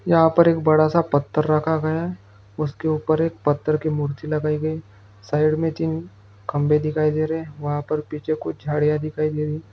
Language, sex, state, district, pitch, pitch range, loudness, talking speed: Hindi, male, Chhattisgarh, Jashpur, 155 Hz, 150-155 Hz, -22 LUFS, 215 wpm